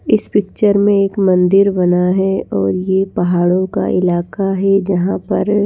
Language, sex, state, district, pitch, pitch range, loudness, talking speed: Hindi, female, Bihar, Patna, 190 Hz, 180-195 Hz, -14 LUFS, 160 wpm